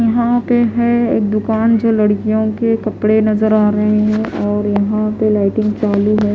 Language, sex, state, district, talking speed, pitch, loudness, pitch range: Hindi, female, Odisha, Khordha, 180 wpm, 215 Hz, -14 LUFS, 210-225 Hz